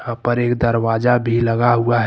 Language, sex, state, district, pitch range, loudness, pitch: Hindi, male, Jharkhand, Deoghar, 115-120 Hz, -17 LUFS, 120 Hz